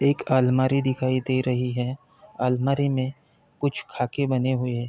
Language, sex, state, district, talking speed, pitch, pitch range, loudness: Hindi, male, Uttar Pradesh, Deoria, 160 wpm, 130 Hz, 125-140 Hz, -24 LUFS